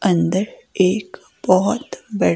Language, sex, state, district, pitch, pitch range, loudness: Hindi, female, Himachal Pradesh, Shimla, 190 Hz, 185-210 Hz, -19 LUFS